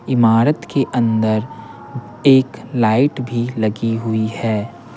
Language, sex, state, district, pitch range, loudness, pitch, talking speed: Hindi, male, Bihar, Patna, 110-125 Hz, -17 LUFS, 115 Hz, 110 wpm